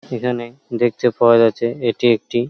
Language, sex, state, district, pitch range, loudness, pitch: Bengali, male, West Bengal, Paschim Medinipur, 115-120 Hz, -17 LUFS, 120 Hz